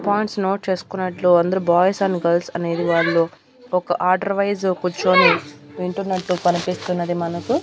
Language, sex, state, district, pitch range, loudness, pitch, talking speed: Telugu, female, Andhra Pradesh, Annamaya, 175-195 Hz, -20 LUFS, 180 Hz, 125 wpm